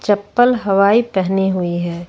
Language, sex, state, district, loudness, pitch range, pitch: Hindi, female, Jharkhand, Ranchi, -16 LUFS, 180-210 Hz, 195 Hz